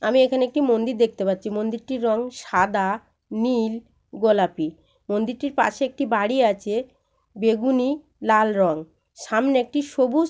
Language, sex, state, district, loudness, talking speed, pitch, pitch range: Bengali, female, West Bengal, Malda, -22 LUFS, 130 wpm, 230 Hz, 210-260 Hz